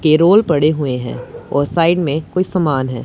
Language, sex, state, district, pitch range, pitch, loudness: Hindi, male, Punjab, Pathankot, 140-175 Hz, 155 Hz, -15 LUFS